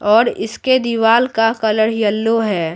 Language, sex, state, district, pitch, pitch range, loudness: Hindi, female, Bihar, Patna, 225 Hz, 215-230 Hz, -15 LUFS